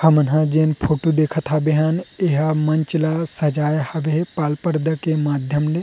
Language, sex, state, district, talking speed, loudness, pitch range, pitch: Chhattisgarhi, male, Chhattisgarh, Rajnandgaon, 185 wpm, -19 LUFS, 150-160 Hz, 155 Hz